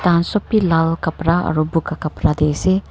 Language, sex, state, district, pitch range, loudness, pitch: Nagamese, female, Nagaland, Kohima, 155-180 Hz, -18 LUFS, 165 Hz